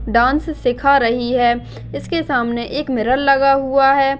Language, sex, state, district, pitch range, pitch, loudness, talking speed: Hindi, female, Chhattisgarh, Jashpur, 235-275 Hz, 260 Hz, -16 LUFS, 155 wpm